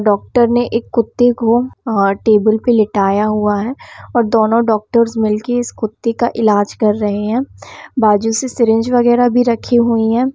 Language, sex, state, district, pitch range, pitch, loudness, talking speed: Hindi, female, Bihar, Samastipur, 215-240 Hz, 230 Hz, -14 LUFS, 175 wpm